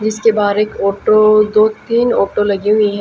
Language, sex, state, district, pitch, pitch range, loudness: Hindi, female, Haryana, Jhajjar, 215 Hz, 205-215 Hz, -13 LUFS